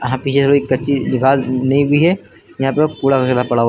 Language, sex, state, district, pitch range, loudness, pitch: Hindi, male, Uttar Pradesh, Lucknow, 130-140 Hz, -15 LUFS, 135 Hz